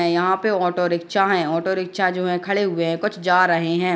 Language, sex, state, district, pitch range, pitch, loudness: Hindi, female, Bihar, Gopalganj, 170-190 Hz, 180 Hz, -20 LUFS